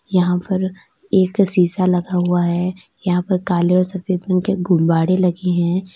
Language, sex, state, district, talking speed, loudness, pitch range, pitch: Hindi, female, Uttar Pradesh, Lalitpur, 170 wpm, -18 LUFS, 180-185 Hz, 180 Hz